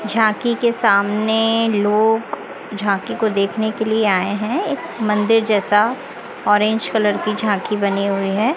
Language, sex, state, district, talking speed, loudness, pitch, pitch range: Hindi, female, Chhattisgarh, Raipur, 145 wpm, -18 LUFS, 215 Hz, 205-225 Hz